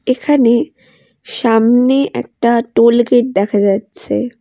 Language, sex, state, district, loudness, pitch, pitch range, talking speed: Bengali, female, West Bengal, Alipurduar, -13 LUFS, 235 Hz, 230-250 Hz, 95 wpm